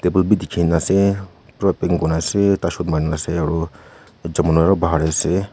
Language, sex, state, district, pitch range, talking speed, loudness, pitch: Nagamese, male, Nagaland, Kohima, 80-95 Hz, 215 wpm, -18 LUFS, 85 Hz